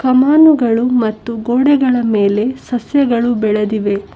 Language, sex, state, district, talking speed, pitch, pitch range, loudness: Kannada, female, Karnataka, Bangalore, 85 wpm, 240 Hz, 215-260 Hz, -13 LUFS